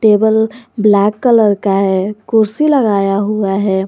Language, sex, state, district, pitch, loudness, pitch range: Hindi, female, Jharkhand, Garhwa, 210 Hz, -13 LUFS, 200-220 Hz